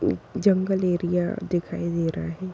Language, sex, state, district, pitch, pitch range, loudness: Kumaoni, female, Uttarakhand, Tehri Garhwal, 175 Hz, 170-190 Hz, -25 LUFS